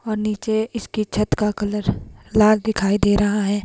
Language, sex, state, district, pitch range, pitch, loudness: Hindi, female, Himachal Pradesh, Shimla, 205-215 Hz, 210 Hz, -20 LUFS